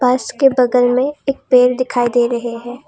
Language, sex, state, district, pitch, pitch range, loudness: Hindi, female, Assam, Kamrup Metropolitan, 250 Hz, 245-260 Hz, -15 LUFS